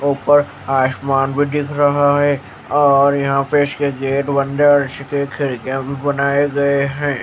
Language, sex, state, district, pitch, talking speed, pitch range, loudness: Hindi, male, Haryana, Jhajjar, 140 Hz, 155 wpm, 140-145 Hz, -16 LUFS